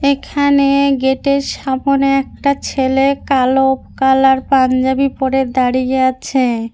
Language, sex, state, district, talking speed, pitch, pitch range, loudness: Bengali, female, West Bengal, Cooch Behar, 105 wpm, 265 Hz, 260-275 Hz, -14 LUFS